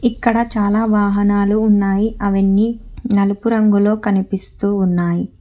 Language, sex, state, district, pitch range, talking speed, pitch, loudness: Telugu, female, Telangana, Hyderabad, 200-220 Hz, 100 wpm, 205 Hz, -16 LUFS